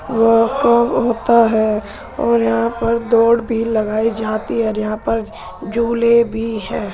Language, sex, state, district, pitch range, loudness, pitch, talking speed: Hindi, female, Uttar Pradesh, Muzaffarnagar, 215-235 Hz, -16 LUFS, 225 Hz, 140 wpm